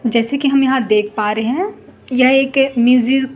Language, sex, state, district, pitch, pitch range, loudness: Hindi, female, Chhattisgarh, Raipur, 260 Hz, 235-270 Hz, -15 LUFS